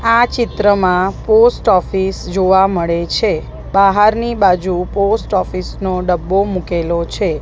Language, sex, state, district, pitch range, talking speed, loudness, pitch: Gujarati, female, Gujarat, Gandhinagar, 180-205 Hz, 120 wpm, -14 LUFS, 190 Hz